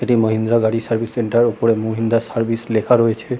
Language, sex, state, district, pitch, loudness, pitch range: Bengali, male, West Bengal, Kolkata, 115 Hz, -17 LUFS, 110-120 Hz